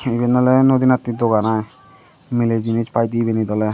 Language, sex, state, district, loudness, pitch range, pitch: Chakma, male, Tripura, Dhalai, -17 LUFS, 110-125 Hz, 115 Hz